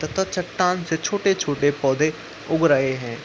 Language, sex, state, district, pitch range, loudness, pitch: Hindi, male, Uttar Pradesh, Muzaffarnagar, 145-180 Hz, -22 LUFS, 155 Hz